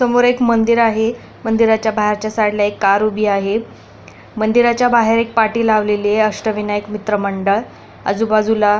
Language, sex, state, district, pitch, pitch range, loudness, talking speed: Marathi, female, Maharashtra, Pune, 215 Hz, 210-230 Hz, -16 LUFS, 150 wpm